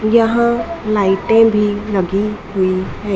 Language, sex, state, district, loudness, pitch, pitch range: Hindi, female, Madhya Pradesh, Dhar, -15 LUFS, 210 Hz, 195-225 Hz